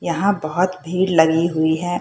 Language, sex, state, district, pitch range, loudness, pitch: Hindi, female, Bihar, Purnia, 160-185 Hz, -18 LUFS, 170 Hz